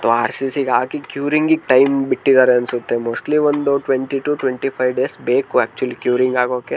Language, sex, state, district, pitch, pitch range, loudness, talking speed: Kannada, male, Karnataka, Mysore, 135 Hz, 125-140 Hz, -17 LUFS, 160 wpm